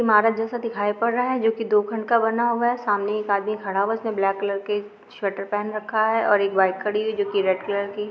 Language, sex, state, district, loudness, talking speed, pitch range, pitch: Hindi, female, Andhra Pradesh, Krishna, -23 LUFS, 265 wpm, 200-225 Hz, 210 Hz